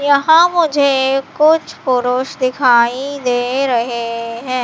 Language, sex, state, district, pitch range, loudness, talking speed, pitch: Hindi, female, Madhya Pradesh, Katni, 245-285 Hz, -14 LUFS, 105 wpm, 260 Hz